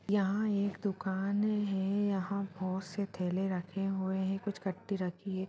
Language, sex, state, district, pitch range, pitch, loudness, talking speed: Hindi, female, Uttar Pradesh, Deoria, 190-200 Hz, 195 Hz, -34 LUFS, 165 wpm